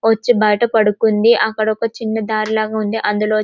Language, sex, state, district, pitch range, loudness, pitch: Telugu, female, Telangana, Karimnagar, 215-225 Hz, -16 LUFS, 220 Hz